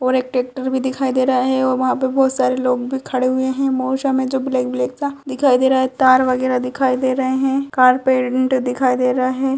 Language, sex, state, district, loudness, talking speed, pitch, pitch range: Hindi, female, Uttar Pradesh, Etah, -17 LUFS, 245 wpm, 260 Hz, 255-265 Hz